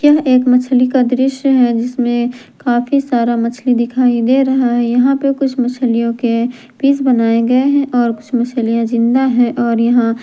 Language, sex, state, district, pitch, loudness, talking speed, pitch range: Hindi, female, Jharkhand, Garhwa, 245 Hz, -14 LUFS, 170 wpm, 235-260 Hz